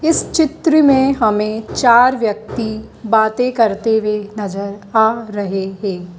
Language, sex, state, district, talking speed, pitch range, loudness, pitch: Hindi, female, Madhya Pradesh, Dhar, 125 wpm, 205-245 Hz, -15 LUFS, 220 Hz